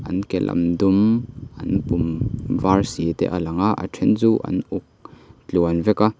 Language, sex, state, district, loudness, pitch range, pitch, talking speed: Mizo, male, Mizoram, Aizawl, -21 LUFS, 85-110 Hz, 95 Hz, 195 wpm